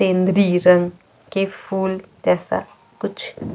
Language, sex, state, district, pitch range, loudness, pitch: Hindi, female, Chhattisgarh, Jashpur, 180-195 Hz, -20 LUFS, 190 Hz